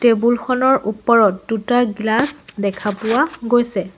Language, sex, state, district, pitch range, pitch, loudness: Assamese, female, Assam, Sonitpur, 210-245 Hz, 230 Hz, -17 LUFS